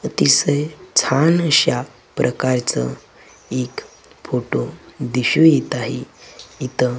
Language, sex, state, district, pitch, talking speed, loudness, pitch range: Marathi, male, Maharashtra, Gondia, 130 Hz, 85 wpm, -18 LUFS, 125-150 Hz